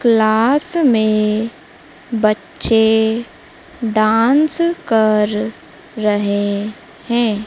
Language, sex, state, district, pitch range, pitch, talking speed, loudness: Hindi, female, Madhya Pradesh, Dhar, 215-240 Hz, 220 Hz, 55 wpm, -16 LUFS